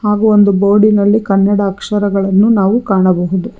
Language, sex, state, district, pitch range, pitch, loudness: Kannada, female, Karnataka, Bangalore, 195-210 Hz, 200 Hz, -11 LUFS